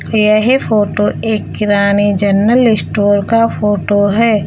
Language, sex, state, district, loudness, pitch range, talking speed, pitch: Hindi, female, Uttar Pradesh, Lalitpur, -12 LUFS, 205-225 Hz, 120 wpm, 210 Hz